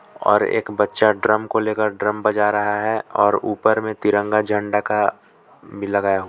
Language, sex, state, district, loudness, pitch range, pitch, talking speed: Hindi, male, Jharkhand, Palamu, -19 LUFS, 105-110 Hz, 105 Hz, 180 wpm